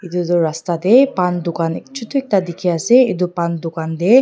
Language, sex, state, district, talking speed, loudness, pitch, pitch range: Nagamese, female, Nagaland, Dimapur, 185 wpm, -17 LUFS, 180 Hz, 170-230 Hz